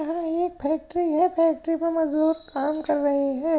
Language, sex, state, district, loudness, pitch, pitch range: Hindi, male, Uttar Pradesh, Jyotiba Phule Nagar, -24 LUFS, 320 Hz, 305-330 Hz